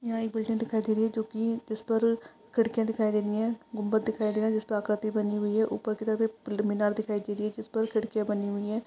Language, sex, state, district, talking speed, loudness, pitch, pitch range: Hindi, female, Maharashtra, Pune, 245 wpm, -29 LUFS, 220 Hz, 210-225 Hz